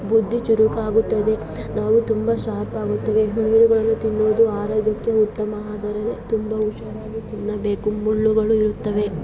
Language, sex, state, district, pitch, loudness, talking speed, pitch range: Kannada, female, Karnataka, Bijapur, 215 Hz, -20 LUFS, 115 wpm, 210-220 Hz